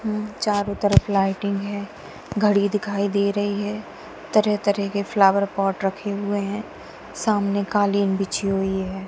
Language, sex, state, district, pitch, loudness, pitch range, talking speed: Hindi, female, Punjab, Kapurthala, 200 Hz, -22 LUFS, 195-205 Hz, 145 wpm